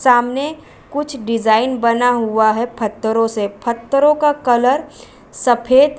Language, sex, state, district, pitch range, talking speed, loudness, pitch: Hindi, female, Uttar Pradesh, Varanasi, 225-275 Hz, 130 wpm, -16 LUFS, 245 Hz